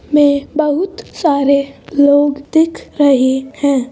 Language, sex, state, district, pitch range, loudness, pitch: Hindi, female, Uttar Pradesh, Hamirpur, 280-300 Hz, -14 LUFS, 285 Hz